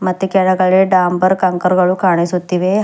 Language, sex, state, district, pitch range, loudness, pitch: Kannada, female, Karnataka, Bidar, 180-190 Hz, -13 LUFS, 185 Hz